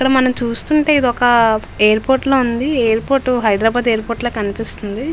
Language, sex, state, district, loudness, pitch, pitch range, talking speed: Telugu, female, Andhra Pradesh, Visakhapatnam, -15 LUFS, 240 Hz, 220-265 Hz, 175 wpm